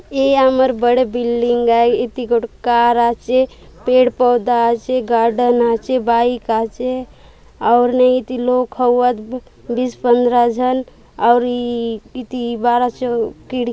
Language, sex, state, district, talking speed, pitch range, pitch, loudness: Halbi, female, Chhattisgarh, Bastar, 125 wpm, 235-255 Hz, 245 Hz, -16 LUFS